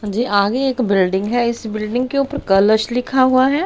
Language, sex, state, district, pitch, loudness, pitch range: Hindi, female, Haryana, Rohtak, 240 Hz, -17 LUFS, 210-260 Hz